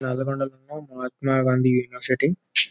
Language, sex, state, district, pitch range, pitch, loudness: Telugu, male, Telangana, Nalgonda, 125-135 Hz, 130 Hz, -23 LUFS